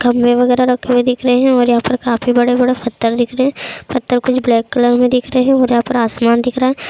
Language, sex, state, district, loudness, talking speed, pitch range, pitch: Hindi, female, Uttar Pradesh, Jalaun, -13 LUFS, 270 wpm, 240-255 Hz, 245 Hz